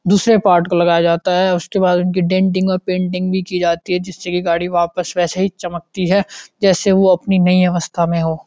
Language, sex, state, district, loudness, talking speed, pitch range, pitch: Hindi, male, Uttarakhand, Uttarkashi, -16 LUFS, 220 wpm, 175-190 Hz, 180 Hz